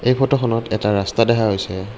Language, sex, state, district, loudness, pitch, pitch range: Assamese, male, Assam, Kamrup Metropolitan, -18 LUFS, 110 Hz, 100-115 Hz